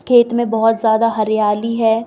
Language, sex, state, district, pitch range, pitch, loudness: Hindi, female, Bihar, Gopalganj, 220-230 Hz, 225 Hz, -15 LUFS